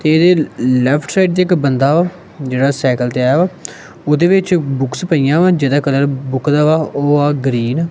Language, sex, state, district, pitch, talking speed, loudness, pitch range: Punjabi, male, Punjab, Kapurthala, 145 Hz, 205 wpm, -14 LUFS, 135-170 Hz